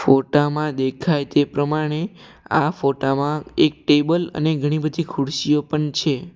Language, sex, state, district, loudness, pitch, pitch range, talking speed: Gujarati, male, Gujarat, Valsad, -20 LUFS, 150 Hz, 145-155 Hz, 130 wpm